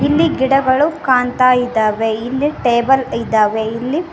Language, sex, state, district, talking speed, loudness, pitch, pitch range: Kannada, female, Karnataka, Koppal, 115 wpm, -15 LUFS, 255 Hz, 230-280 Hz